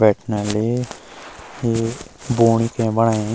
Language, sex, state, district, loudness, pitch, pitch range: Garhwali, male, Uttarakhand, Uttarkashi, -20 LUFS, 115 Hz, 110-115 Hz